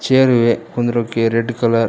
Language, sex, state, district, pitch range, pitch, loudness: Kannada, male, Karnataka, Koppal, 115-120 Hz, 115 Hz, -16 LUFS